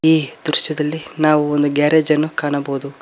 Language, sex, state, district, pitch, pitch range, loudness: Kannada, male, Karnataka, Koppal, 150 Hz, 145-155 Hz, -17 LUFS